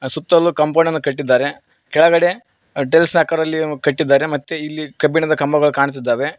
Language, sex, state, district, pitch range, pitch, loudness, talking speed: Kannada, male, Karnataka, Koppal, 140-165 Hz, 155 Hz, -16 LUFS, 130 wpm